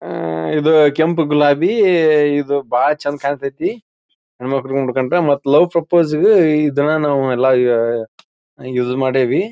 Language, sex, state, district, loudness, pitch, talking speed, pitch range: Kannada, male, Karnataka, Belgaum, -15 LUFS, 145 Hz, 140 wpm, 130-155 Hz